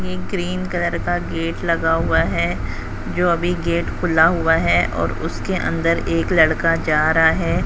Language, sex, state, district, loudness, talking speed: Hindi, female, Haryana, Jhajjar, -19 LUFS, 170 wpm